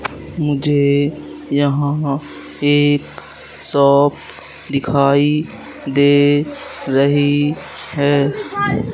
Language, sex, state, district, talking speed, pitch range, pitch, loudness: Hindi, male, Madhya Pradesh, Katni, 55 wpm, 140-145 Hz, 145 Hz, -16 LUFS